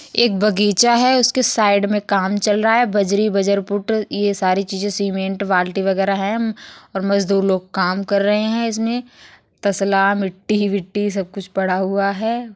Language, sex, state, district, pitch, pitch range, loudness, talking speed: Bundeli, female, Uttar Pradesh, Budaun, 200 Hz, 195-215 Hz, -18 LUFS, 170 wpm